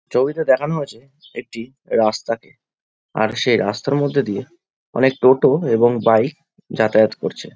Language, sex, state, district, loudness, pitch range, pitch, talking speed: Bengali, male, West Bengal, Jhargram, -18 LUFS, 110-140 Hz, 125 Hz, 145 wpm